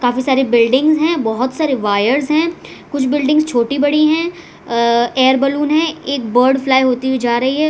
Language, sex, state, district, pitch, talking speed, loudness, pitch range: Hindi, female, Gujarat, Valsad, 265 Hz, 185 wpm, -15 LUFS, 245-300 Hz